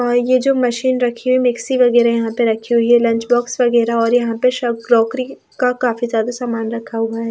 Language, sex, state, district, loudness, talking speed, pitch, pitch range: Hindi, female, Haryana, Rohtak, -16 LUFS, 230 wpm, 240 Hz, 230-250 Hz